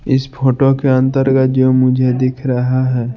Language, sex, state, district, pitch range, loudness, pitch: Hindi, male, Bihar, Kaimur, 130-135 Hz, -14 LUFS, 130 Hz